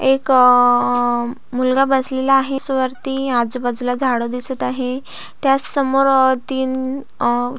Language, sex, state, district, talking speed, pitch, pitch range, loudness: Marathi, female, Maharashtra, Solapur, 135 wpm, 260 Hz, 245-270 Hz, -17 LUFS